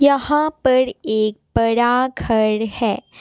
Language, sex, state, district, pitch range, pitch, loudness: Hindi, female, Assam, Kamrup Metropolitan, 220-275 Hz, 245 Hz, -18 LUFS